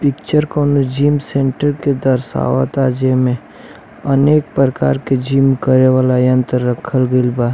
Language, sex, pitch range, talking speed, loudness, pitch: Bhojpuri, male, 125-140 Hz, 110 wpm, -14 LUFS, 130 Hz